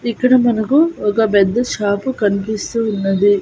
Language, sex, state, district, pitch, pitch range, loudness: Telugu, female, Andhra Pradesh, Annamaya, 220 Hz, 205-245 Hz, -16 LUFS